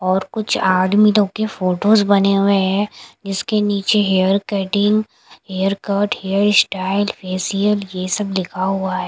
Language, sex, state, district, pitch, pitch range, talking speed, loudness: Hindi, female, Punjab, Kapurthala, 195 Hz, 190-205 Hz, 150 wpm, -17 LUFS